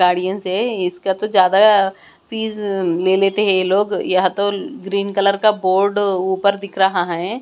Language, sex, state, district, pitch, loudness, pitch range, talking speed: Hindi, female, Bihar, West Champaran, 195 Hz, -17 LUFS, 185-200 Hz, 170 wpm